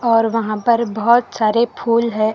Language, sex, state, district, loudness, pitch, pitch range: Hindi, female, Karnataka, Koppal, -16 LUFS, 230 Hz, 220-235 Hz